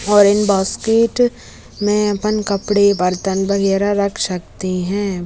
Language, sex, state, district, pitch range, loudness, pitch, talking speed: Hindi, female, Bihar, Darbhanga, 190-210 Hz, -16 LUFS, 200 Hz, 125 wpm